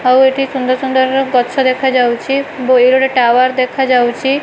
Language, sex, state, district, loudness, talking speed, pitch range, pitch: Odia, female, Odisha, Malkangiri, -12 LUFS, 95 wpm, 250-265 Hz, 260 Hz